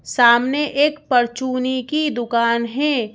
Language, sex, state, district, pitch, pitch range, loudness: Hindi, female, Madhya Pradesh, Bhopal, 255 Hz, 240-290 Hz, -18 LUFS